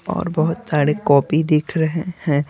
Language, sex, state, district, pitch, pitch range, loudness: Hindi, male, Bihar, Patna, 155 Hz, 150-165 Hz, -19 LUFS